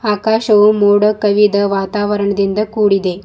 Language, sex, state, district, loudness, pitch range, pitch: Kannada, female, Karnataka, Bidar, -13 LUFS, 200-210 Hz, 205 Hz